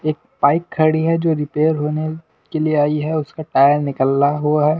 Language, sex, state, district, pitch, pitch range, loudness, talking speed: Hindi, male, Delhi, New Delhi, 155 Hz, 150-155 Hz, -18 LUFS, 200 wpm